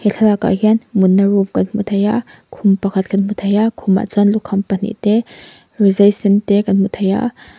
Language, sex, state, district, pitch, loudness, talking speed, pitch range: Mizo, female, Mizoram, Aizawl, 205 Hz, -15 LUFS, 215 wpm, 195-215 Hz